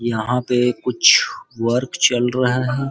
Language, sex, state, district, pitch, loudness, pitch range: Hindi, male, Chhattisgarh, Rajnandgaon, 125 Hz, -17 LUFS, 120-125 Hz